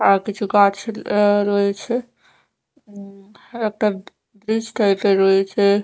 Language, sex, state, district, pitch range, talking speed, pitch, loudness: Bengali, female, Odisha, Nuapada, 200-215 Hz, 115 wpm, 205 Hz, -19 LUFS